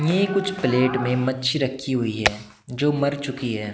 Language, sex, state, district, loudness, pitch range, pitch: Hindi, male, Uttar Pradesh, Shamli, -23 LUFS, 125-145 Hz, 130 Hz